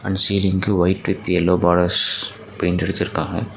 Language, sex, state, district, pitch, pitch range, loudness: Tamil, male, Tamil Nadu, Nilgiris, 90 Hz, 90-95 Hz, -19 LUFS